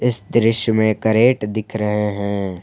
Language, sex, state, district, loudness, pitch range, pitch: Hindi, male, Jharkhand, Palamu, -18 LUFS, 105-115 Hz, 110 Hz